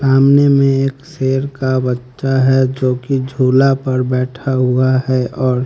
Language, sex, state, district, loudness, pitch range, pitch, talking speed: Hindi, male, Haryana, Rohtak, -15 LUFS, 130-135 Hz, 130 Hz, 150 wpm